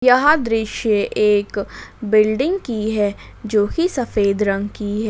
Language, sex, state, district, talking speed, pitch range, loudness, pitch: Hindi, female, Jharkhand, Ranchi, 140 wpm, 205-240 Hz, -18 LUFS, 215 Hz